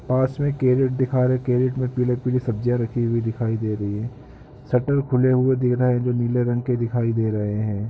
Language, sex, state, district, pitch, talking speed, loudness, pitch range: Hindi, male, Uttarakhand, Tehri Garhwal, 125 Hz, 220 wpm, -22 LUFS, 115-130 Hz